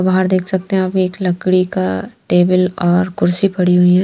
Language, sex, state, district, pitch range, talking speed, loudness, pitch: Hindi, female, Bihar, Patna, 180-185 Hz, 210 wpm, -15 LUFS, 185 Hz